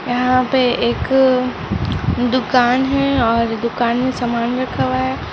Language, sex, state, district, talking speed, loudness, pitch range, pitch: Hindi, female, Bihar, East Champaran, 135 wpm, -17 LUFS, 235-255 Hz, 245 Hz